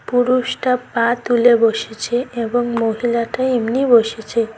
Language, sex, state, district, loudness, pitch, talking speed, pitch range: Bengali, female, West Bengal, Cooch Behar, -17 LUFS, 235 Hz, 105 wpm, 230-245 Hz